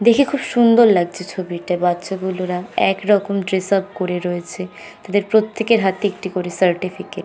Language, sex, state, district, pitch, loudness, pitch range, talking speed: Bengali, female, West Bengal, North 24 Parganas, 190 Hz, -18 LUFS, 180-205 Hz, 155 wpm